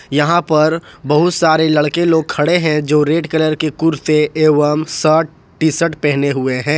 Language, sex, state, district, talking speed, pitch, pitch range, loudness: Hindi, male, Jharkhand, Ranchi, 175 wpm, 155 Hz, 150-160 Hz, -14 LUFS